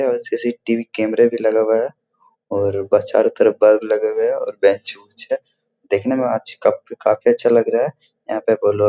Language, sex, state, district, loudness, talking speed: Hindi, male, Bihar, Jahanabad, -18 LUFS, 215 wpm